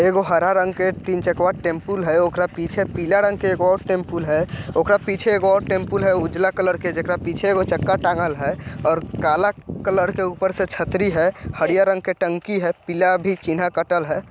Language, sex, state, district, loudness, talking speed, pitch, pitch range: Bajjika, male, Bihar, Vaishali, -20 LUFS, 210 wpm, 185 Hz, 170-195 Hz